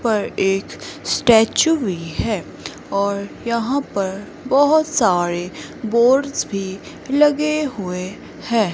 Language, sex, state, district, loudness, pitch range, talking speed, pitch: Hindi, female, Himachal Pradesh, Shimla, -19 LUFS, 190-275 Hz, 105 wpm, 225 Hz